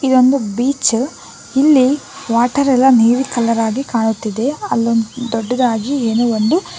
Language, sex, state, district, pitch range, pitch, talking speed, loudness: Kannada, female, Karnataka, Bangalore, 230-270 Hz, 250 Hz, 115 wpm, -15 LUFS